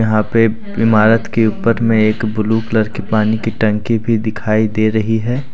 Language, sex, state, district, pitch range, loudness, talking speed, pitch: Hindi, male, Jharkhand, Deoghar, 110-115 Hz, -15 LUFS, 195 wpm, 110 Hz